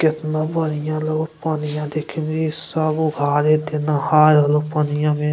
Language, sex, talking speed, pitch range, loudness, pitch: Angika, male, 145 wpm, 150-155 Hz, -19 LUFS, 155 Hz